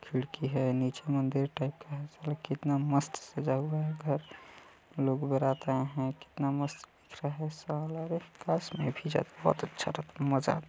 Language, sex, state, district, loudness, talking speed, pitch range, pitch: Chhattisgarhi, male, Chhattisgarh, Balrampur, -33 LUFS, 180 wpm, 135-155 Hz, 140 Hz